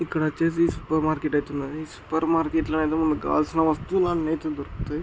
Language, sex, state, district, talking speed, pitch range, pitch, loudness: Telugu, male, Andhra Pradesh, Chittoor, 190 wpm, 150-160 Hz, 155 Hz, -25 LUFS